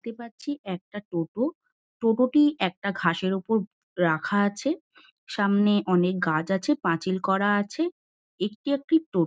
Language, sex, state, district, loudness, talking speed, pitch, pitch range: Bengali, female, West Bengal, Kolkata, -26 LUFS, 130 wpm, 205 Hz, 185-255 Hz